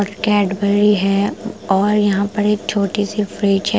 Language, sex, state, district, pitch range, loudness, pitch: Hindi, female, Punjab, Pathankot, 200-210 Hz, -17 LUFS, 205 Hz